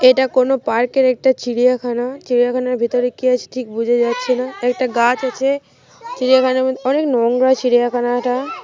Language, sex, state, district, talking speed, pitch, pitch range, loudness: Bengali, female, Jharkhand, Jamtara, 130 wpm, 250 Hz, 245-260 Hz, -17 LUFS